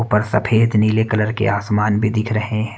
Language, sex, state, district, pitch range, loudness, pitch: Hindi, male, Haryana, Rohtak, 105-110 Hz, -17 LUFS, 110 Hz